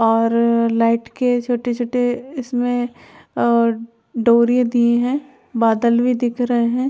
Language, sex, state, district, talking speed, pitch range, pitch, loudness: Hindi, female, Chhattisgarh, Raigarh, 120 wpm, 235-245 Hz, 240 Hz, -18 LUFS